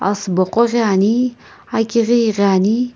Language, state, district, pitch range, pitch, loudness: Sumi, Nagaland, Kohima, 200-235 Hz, 225 Hz, -16 LUFS